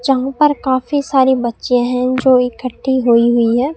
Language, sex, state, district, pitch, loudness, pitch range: Hindi, female, Rajasthan, Bikaner, 255 Hz, -14 LUFS, 245-270 Hz